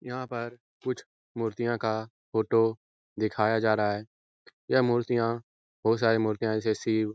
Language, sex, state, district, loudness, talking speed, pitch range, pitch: Hindi, male, Uttar Pradesh, Etah, -28 LUFS, 150 wpm, 110-120 Hz, 115 Hz